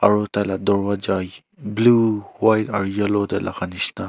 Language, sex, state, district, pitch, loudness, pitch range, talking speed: Nagamese, male, Nagaland, Kohima, 100 Hz, -20 LUFS, 100-105 Hz, 160 wpm